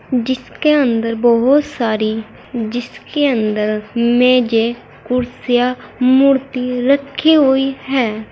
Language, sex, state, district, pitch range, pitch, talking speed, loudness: Hindi, female, Uttar Pradesh, Saharanpur, 230-270 Hz, 250 Hz, 85 wpm, -15 LUFS